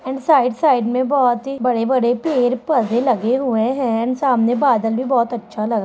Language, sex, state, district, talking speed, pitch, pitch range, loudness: Hindi, female, Bihar, Sitamarhi, 185 wpm, 250 Hz, 235-265 Hz, -17 LUFS